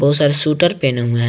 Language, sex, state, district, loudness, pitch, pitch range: Hindi, male, Jharkhand, Garhwa, -15 LUFS, 140 Hz, 120-150 Hz